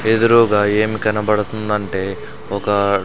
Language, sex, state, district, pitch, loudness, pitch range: Telugu, male, Andhra Pradesh, Sri Satya Sai, 105 Hz, -17 LUFS, 100-110 Hz